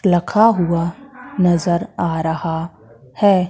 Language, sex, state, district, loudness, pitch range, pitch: Hindi, female, Madhya Pradesh, Katni, -17 LUFS, 165-200 Hz, 175 Hz